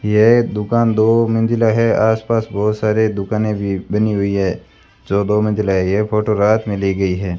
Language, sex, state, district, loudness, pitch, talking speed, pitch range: Hindi, male, Rajasthan, Bikaner, -16 LUFS, 105 Hz, 195 wpm, 100-110 Hz